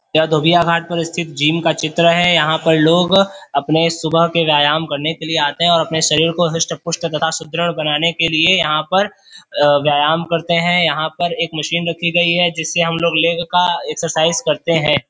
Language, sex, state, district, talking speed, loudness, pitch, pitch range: Hindi, male, Uttar Pradesh, Varanasi, 210 wpm, -15 LUFS, 165 Hz, 155-170 Hz